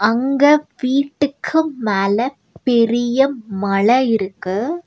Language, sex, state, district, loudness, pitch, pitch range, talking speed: Tamil, female, Tamil Nadu, Nilgiris, -17 LUFS, 250 Hz, 215-280 Hz, 75 wpm